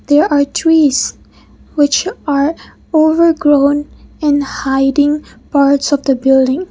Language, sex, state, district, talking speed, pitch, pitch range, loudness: English, female, Mizoram, Aizawl, 115 wpm, 290 Hz, 280-310 Hz, -13 LUFS